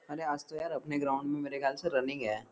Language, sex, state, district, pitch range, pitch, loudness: Hindi, male, Uttar Pradesh, Jyotiba Phule Nagar, 135-150 Hz, 145 Hz, -34 LUFS